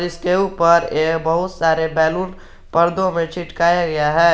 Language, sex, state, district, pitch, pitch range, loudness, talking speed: Hindi, male, Jharkhand, Garhwa, 170 Hz, 160-175 Hz, -17 LUFS, 150 wpm